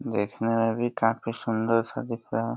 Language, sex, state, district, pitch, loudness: Hindi, male, Uttar Pradesh, Deoria, 115 Hz, -27 LUFS